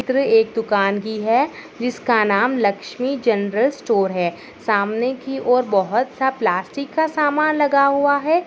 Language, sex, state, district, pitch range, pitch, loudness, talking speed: Hindi, female, Maharashtra, Pune, 215-275 Hz, 245 Hz, -19 LUFS, 150 wpm